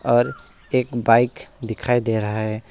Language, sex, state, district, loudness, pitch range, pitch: Hindi, male, West Bengal, Alipurduar, -21 LUFS, 110-120 Hz, 115 Hz